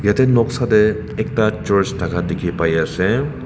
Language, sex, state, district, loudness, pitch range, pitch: Nagamese, male, Nagaland, Kohima, -18 LUFS, 90-120 Hz, 105 Hz